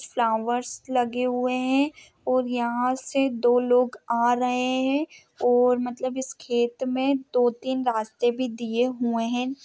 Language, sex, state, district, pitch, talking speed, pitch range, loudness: Hindi, female, Maharashtra, Pune, 250 Hz, 150 wpm, 240-260 Hz, -24 LUFS